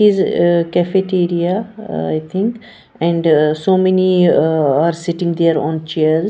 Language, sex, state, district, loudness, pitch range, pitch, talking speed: English, female, Punjab, Pathankot, -15 LUFS, 160-190 Hz, 175 Hz, 135 wpm